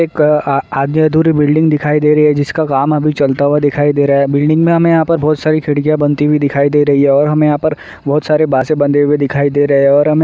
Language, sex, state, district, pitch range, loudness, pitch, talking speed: Hindi, male, Uttar Pradesh, Jalaun, 145-155 Hz, -12 LUFS, 150 Hz, 280 wpm